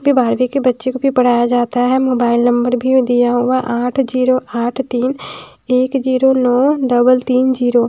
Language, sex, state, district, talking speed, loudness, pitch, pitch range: Hindi, female, Bihar, Patna, 195 wpm, -14 LUFS, 250 Hz, 245-260 Hz